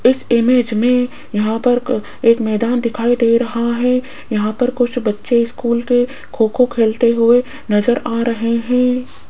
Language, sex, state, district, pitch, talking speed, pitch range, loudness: Hindi, female, Rajasthan, Jaipur, 235 Hz, 160 wpm, 230-250 Hz, -16 LUFS